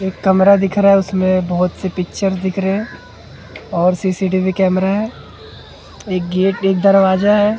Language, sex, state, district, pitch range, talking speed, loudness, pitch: Hindi, male, Maharashtra, Mumbai Suburban, 185-195 Hz, 165 wpm, -15 LUFS, 190 Hz